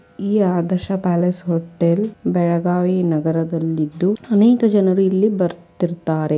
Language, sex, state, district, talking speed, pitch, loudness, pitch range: Kannada, female, Karnataka, Belgaum, 95 wpm, 180 Hz, -18 LUFS, 170-195 Hz